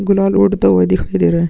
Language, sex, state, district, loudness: Hindi, male, Uttar Pradesh, Muzaffarnagar, -13 LUFS